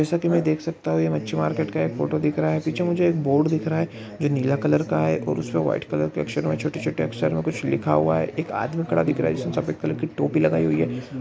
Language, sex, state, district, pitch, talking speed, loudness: Maithili, male, Bihar, Araria, 80 Hz, 295 wpm, -23 LUFS